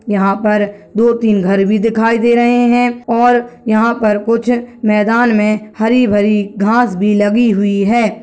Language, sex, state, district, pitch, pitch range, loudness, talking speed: Hindi, male, Bihar, Kishanganj, 220 Hz, 210-235 Hz, -13 LUFS, 155 wpm